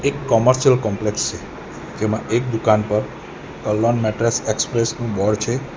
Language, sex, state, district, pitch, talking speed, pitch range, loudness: Gujarati, male, Gujarat, Valsad, 115 Hz, 135 wpm, 105-120 Hz, -19 LUFS